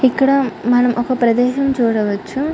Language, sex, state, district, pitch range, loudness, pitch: Telugu, female, Andhra Pradesh, Chittoor, 235-270 Hz, -16 LUFS, 245 Hz